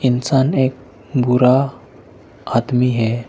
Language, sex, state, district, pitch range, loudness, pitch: Hindi, male, Arunachal Pradesh, Lower Dibang Valley, 125-130 Hz, -17 LUFS, 125 Hz